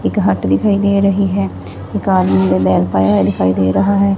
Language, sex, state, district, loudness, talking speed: Punjabi, female, Punjab, Fazilka, -14 LUFS, 215 wpm